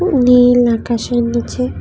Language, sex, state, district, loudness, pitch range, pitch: Bengali, female, Tripura, West Tripura, -13 LUFS, 230-245 Hz, 240 Hz